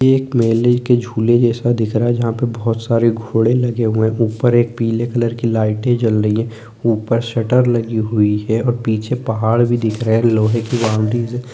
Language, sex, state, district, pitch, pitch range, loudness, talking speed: Hindi, male, Chhattisgarh, Korba, 115 Hz, 110-120 Hz, -16 LUFS, 210 wpm